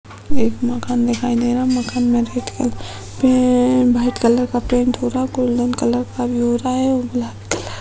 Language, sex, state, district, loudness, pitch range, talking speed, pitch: Hindi, female, Uttar Pradesh, Hamirpur, -18 LUFS, 240-250 Hz, 215 wpm, 245 Hz